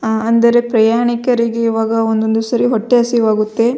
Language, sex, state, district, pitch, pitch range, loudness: Kannada, female, Karnataka, Belgaum, 230 Hz, 225-240 Hz, -14 LUFS